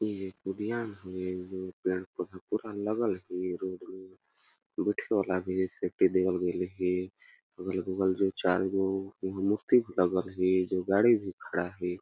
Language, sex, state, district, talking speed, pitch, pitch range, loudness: Awadhi, male, Chhattisgarh, Balrampur, 140 wpm, 95 Hz, 90-95 Hz, -31 LUFS